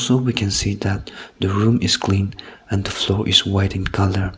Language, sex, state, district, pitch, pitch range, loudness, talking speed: English, male, Nagaland, Kohima, 100 Hz, 95-105 Hz, -19 LUFS, 220 wpm